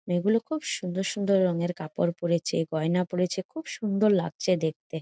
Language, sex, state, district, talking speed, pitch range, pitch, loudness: Bengali, female, West Bengal, Jhargram, 165 wpm, 170-200 Hz, 180 Hz, -27 LUFS